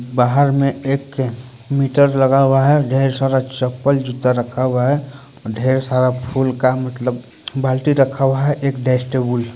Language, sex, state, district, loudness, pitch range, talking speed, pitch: Hindi, male, Bihar, Purnia, -17 LUFS, 125-135 Hz, 170 wpm, 130 Hz